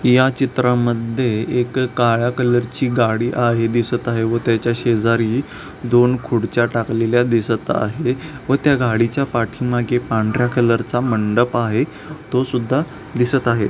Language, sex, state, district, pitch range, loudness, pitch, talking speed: Marathi, male, Maharashtra, Pune, 115-125 Hz, -18 LUFS, 120 Hz, 140 wpm